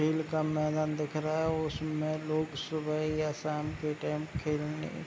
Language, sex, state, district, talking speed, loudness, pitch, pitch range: Hindi, male, Bihar, Begusarai, 175 wpm, -33 LUFS, 155 Hz, 150-155 Hz